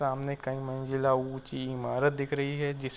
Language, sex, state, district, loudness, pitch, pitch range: Hindi, male, Uttar Pradesh, Varanasi, -31 LUFS, 135 Hz, 130-140 Hz